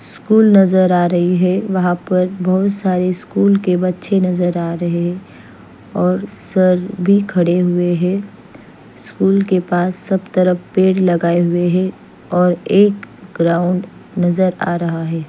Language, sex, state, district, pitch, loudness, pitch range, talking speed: Hindi, female, Chandigarh, Chandigarh, 180 Hz, -15 LUFS, 175-190 Hz, 150 wpm